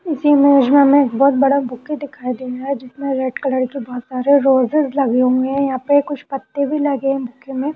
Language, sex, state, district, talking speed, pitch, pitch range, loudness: Hindi, female, Uttarakhand, Uttarkashi, 245 wpm, 275 Hz, 255-285 Hz, -17 LUFS